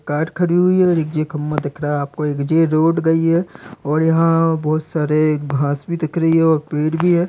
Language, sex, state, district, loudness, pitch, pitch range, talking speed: Hindi, male, Uttar Pradesh, Deoria, -17 LUFS, 160 Hz, 150-165 Hz, 245 wpm